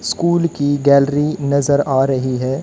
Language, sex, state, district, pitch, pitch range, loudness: Hindi, female, Haryana, Jhajjar, 140 Hz, 135-145 Hz, -16 LUFS